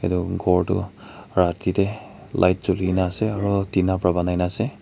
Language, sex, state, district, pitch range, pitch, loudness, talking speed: Nagamese, male, Nagaland, Kohima, 90-100 Hz, 95 Hz, -22 LUFS, 185 wpm